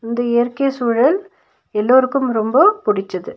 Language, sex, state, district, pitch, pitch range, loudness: Tamil, female, Tamil Nadu, Nilgiris, 245 Hz, 225-275 Hz, -16 LUFS